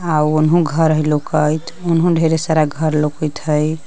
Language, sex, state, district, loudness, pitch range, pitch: Magahi, female, Jharkhand, Palamu, -16 LUFS, 150-160 Hz, 155 Hz